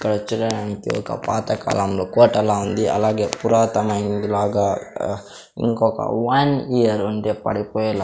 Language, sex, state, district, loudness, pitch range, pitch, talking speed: Telugu, male, Andhra Pradesh, Sri Satya Sai, -20 LUFS, 105-115 Hz, 105 Hz, 120 wpm